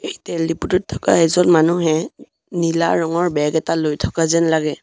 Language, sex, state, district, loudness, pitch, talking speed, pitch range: Assamese, male, Assam, Sonitpur, -17 LUFS, 165 Hz, 160 wpm, 160-175 Hz